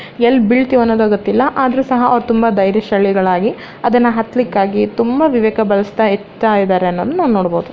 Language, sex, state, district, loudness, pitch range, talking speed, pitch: Kannada, female, Karnataka, Bellary, -14 LUFS, 200-245 Hz, 165 wpm, 225 Hz